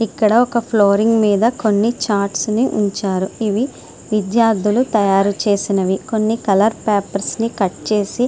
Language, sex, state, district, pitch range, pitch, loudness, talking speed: Telugu, female, Andhra Pradesh, Srikakulam, 200-225 Hz, 210 Hz, -17 LUFS, 140 wpm